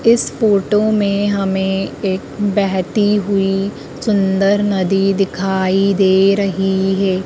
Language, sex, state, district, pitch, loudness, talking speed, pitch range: Hindi, female, Madhya Pradesh, Dhar, 195 Hz, -16 LUFS, 105 wpm, 190-205 Hz